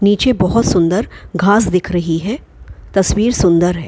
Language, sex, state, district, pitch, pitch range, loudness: Hindi, female, Maharashtra, Chandrapur, 190 Hz, 175-215 Hz, -14 LUFS